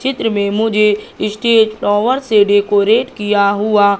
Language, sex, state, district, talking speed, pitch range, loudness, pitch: Hindi, female, Madhya Pradesh, Katni, 135 wpm, 205-225 Hz, -14 LUFS, 210 Hz